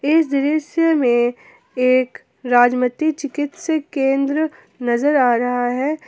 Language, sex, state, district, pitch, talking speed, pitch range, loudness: Hindi, female, Jharkhand, Palamu, 275 Hz, 110 wpm, 245-305 Hz, -18 LUFS